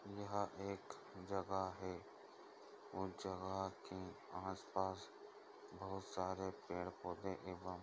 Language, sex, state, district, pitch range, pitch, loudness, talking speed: Hindi, male, Chhattisgarh, Sukma, 90-95 Hz, 95 Hz, -47 LUFS, 105 wpm